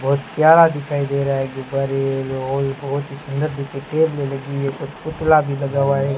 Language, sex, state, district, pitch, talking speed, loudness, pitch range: Hindi, male, Rajasthan, Bikaner, 140 Hz, 205 wpm, -19 LUFS, 135-145 Hz